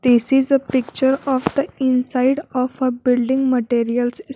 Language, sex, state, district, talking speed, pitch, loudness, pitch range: English, female, Jharkhand, Garhwa, 150 wpm, 260 Hz, -18 LUFS, 250-270 Hz